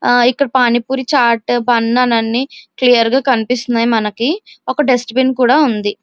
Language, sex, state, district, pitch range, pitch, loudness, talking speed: Telugu, female, Andhra Pradesh, Visakhapatnam, 235-265 Hz, 245 Hz, -14 LUFS, 170 wpm